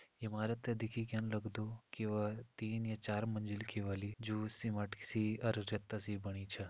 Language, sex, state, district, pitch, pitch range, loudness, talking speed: Hindi, male, Uttarakhand, Tehri Garhwal, 110 Hz, 105-110 Hz, -41 LUFS, 180 wpm